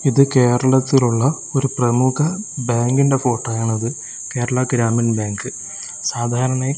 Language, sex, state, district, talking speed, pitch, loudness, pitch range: Malayalam, male, Kerala, Kozhikode, 90 wpm, 125 Hz, -18 LUFS, 120-135 Hz